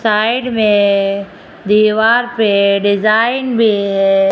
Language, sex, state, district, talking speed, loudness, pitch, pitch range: Hindi, female, Rajasthan, Jaipur, 95 wpm, -13 LUFS, 215 Hz, 200-225 Hz